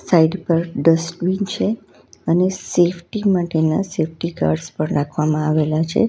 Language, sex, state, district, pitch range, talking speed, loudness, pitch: Gujarati, female, Gujarat, Valsad, 155-185 Hz, 130 wpm, -19 LUFS, 170 Hz